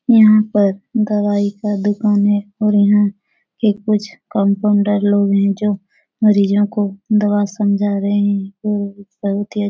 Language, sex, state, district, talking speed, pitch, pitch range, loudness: Hindi, female, Bihar, Supaul, 140 wpm, 205 Hz, 200-210 Hz, -16 LUFS